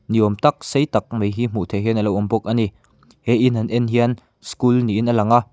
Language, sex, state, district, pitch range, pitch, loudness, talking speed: Mizo, male, Mizoram, Aizawl, 105-120 Hz, 115 Hz, -19 LUFS, 285 wpm